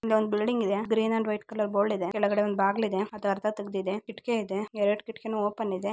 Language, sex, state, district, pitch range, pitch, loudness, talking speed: Kannada, female, Karnataka, Belgaum, 205-220 Hz, 210 Hz, -28 LUFS, 160 wpm